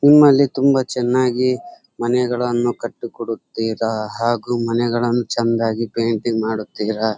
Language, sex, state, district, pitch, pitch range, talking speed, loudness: Kannada, male, Karnataka, Dharwad, 120 Hz, 115-125 Hz, 90 wpm, -19 LUFS